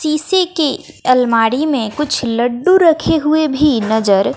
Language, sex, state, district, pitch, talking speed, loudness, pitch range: Hindi, female, Bihar, West Champaran, 285 Hz, 135 wpm, -14 LUFS, 235-310 Hz